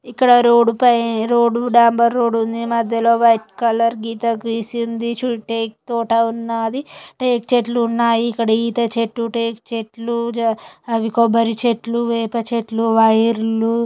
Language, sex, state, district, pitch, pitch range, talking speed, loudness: Telugu, female, Andhra Pradesh, Guntur, 230 Hz, 230-235 Hz, 125 wpm, -17 LUFS